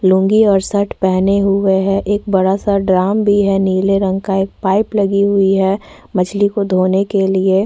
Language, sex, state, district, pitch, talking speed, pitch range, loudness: Hindi, female, Chhattisgarh, Korba, 195 Hz, 205 wpm, 190-200 Hz, -14 LUFS